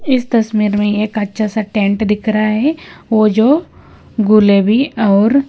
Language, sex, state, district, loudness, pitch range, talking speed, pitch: Hindi, female, Punjab, Kapurthala, -13 LUFS, 210-230 Hz, 155 wpm, 215 Hz